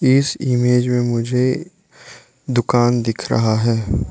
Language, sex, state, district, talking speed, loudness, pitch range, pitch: Hindi, male, Arunachal Pradesh, Lower Dibang Valley, 115 wpm, -18 LUFS, 115-130 Hz, 125 Hz